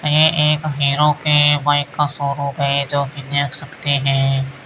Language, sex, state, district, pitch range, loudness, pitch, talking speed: Hindi, male, Rajasthan, Bikaner, 140-150 Hz, -17 LUFS, 145 Hz, 165 wpm